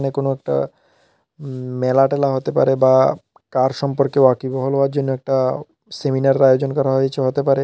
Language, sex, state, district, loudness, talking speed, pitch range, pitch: Bengali, male, Tripura, South Tripura, -18 LUFS, 155 wpm, 130-140 Hz, 135 Hz